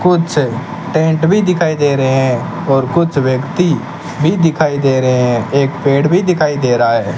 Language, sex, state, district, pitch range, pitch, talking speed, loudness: Hindi, male, Rajasthan, Bikaner, 130-170 Hz, 145 Hz, 185 wpm, -13 LUFS